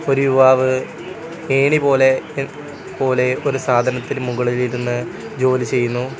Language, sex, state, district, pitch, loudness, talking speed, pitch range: Malayalam, male, Kerala, Kollam, 130 Hz, -17 LUFS, 115 wpm, 125-140 Hz